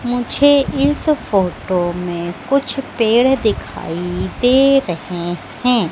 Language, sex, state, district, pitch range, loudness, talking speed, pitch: Hindi, female, Madhya Pradesh, Katni, 180-275 Hz, -16 LUFS, 100 wpm, 240 Hz